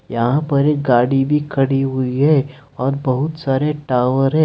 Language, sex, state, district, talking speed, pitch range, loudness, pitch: Hindi, male, Jharkhand, Deoghar, 175 wpm, 130-145 Hz, -17 LUFS, 135 Hz